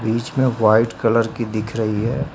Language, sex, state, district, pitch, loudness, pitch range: Hindi, male, Uttar Pradesh, Lucknow, 115 Hz, -19 LUFS, 110-120 Hz